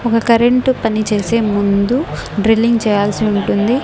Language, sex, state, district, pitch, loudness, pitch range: Telugu, female, Andhra Pradesh, Annamaya, 225 Hz, -14 LUFS, 205-235 Hz